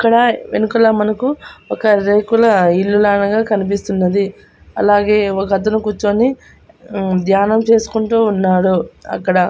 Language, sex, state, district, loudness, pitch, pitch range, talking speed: Telugu, female, Andhra Pradesh, Annamaya, -14 LUFS, 205 Hz, 195-225 Hz, 100 wpm